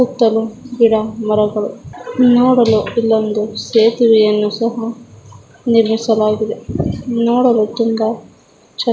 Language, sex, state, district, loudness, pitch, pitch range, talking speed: Kannada, female, Karnataka, Mysore, -15 LUFS, 225 Hz, 215-235 Hz, 75 wpm